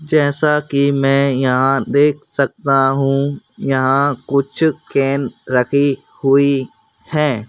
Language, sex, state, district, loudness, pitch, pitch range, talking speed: Hindi, male, Madhya Pradesh, Bhopal, -16 LUFS, 140 Hz, 135-145 Hz, 105 wpm